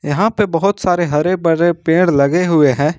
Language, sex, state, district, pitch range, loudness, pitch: Hindi, male, Jharkhand, Ranchi, 150-180 Hz, -14 LUFS, 170 Hz